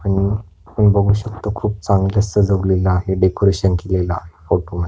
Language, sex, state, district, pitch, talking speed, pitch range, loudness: Marathi, male, Maharashtra, Pune, 95 Hz, 150 wpm, 90-105 Hz, -17 LUFS